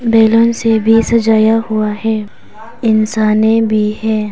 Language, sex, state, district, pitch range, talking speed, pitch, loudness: Hindi, female, Arunachal Pradesh, Papum Pare, 215-225 Hz, 125 wpm, 220 Hz, -12 LUFS